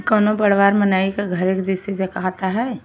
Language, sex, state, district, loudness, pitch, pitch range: Bhojpuri, female, Uttar Pradesh, Ghazipur, -19 LUFS, 195 Hz, 190-205 Hz